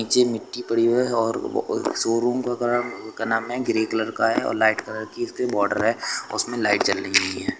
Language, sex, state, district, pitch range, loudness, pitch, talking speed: Hindi, male, Uttar Pradesh, Lucknow, 115-125 Hz, -23 LUFS, 115 Hz, 220 wpm